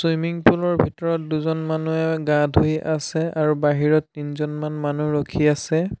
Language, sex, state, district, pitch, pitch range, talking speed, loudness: Assamese, male, Assam, Sonitpur, 155 Hz, 150-160 Hz, 150 wpm, -21 LUFS